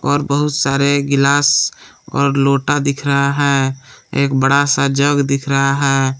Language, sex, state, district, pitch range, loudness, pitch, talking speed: Hindi, male, Jharkhand, Palamu, 140-145 Hz, -15 LUFS, 140 Hz, 155 wpm